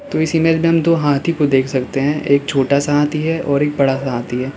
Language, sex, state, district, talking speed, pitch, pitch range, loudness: Hindi, male, Uttar Pradesh, Lalitpur, 275 wpm, 145 Hz, 135-160 Hz, -16 LUFS